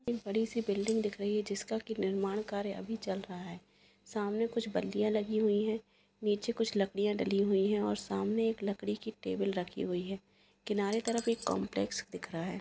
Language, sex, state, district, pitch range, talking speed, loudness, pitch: Hindi, female, Bihar, Jahanabad, 195-220 Hz, 205 wpm, -34 LUFS, 210 Hz